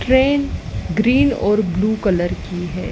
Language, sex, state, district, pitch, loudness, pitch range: Hindi, female, Madhya Pradesh, Dhar, 215 Hz, -18 LUFS, 180-260 Hz